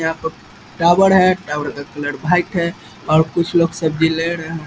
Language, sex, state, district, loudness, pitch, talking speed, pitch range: Hindi, male, Bihar, East Champaran, -17 LUFS, 160 Hz, 220 wpm, 155-170 Hz